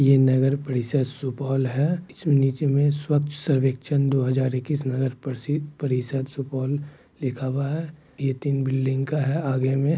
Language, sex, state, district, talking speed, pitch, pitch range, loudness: Hindi, male, Bihar, Supaul, 170 wpm, 135 Hz, 130-145 Hz, -24 LUFS